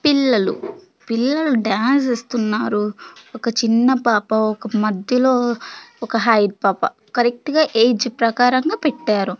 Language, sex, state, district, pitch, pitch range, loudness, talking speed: Telugu, female, Andhra Pradesh, Sri Satya Sai, 235 Hz, 220-260 Hz, -18 LUFS, 100 wpm